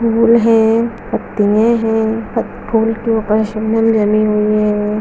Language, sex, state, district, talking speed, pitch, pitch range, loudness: Hindi, female, Bihar, Bhagalpur, 130 wpm, 225 Hz, 215-225 Hz, -14 LUFS